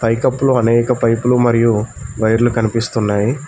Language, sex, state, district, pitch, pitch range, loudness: Telugu, male, Telangana, Mahabubabad, 115 Hz, 115-120 Hz, -15 LUFS